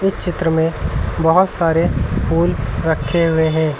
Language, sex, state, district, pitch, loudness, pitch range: Hindi, male, Uttar Pradesh, Lucknow, 165 Hz, -17 LUFS, 160-170 Hz